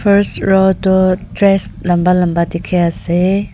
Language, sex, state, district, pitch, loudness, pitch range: Nagamese, female, Nagaland, Dimapur, 185 Hz, -14 LUFS, 175-195 Hz